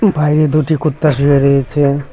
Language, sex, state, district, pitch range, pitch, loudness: Bengali, male, West Bengal, Cooch Behar, 140-155 Hz, 150 Hz, -13 LUFS